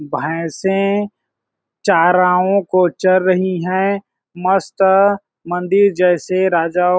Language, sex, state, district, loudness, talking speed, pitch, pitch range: Hindi, male, Chhattisgarh, Balrampur, -15 LUFS, 95 wpm, 185 Hz, 180-195 Hz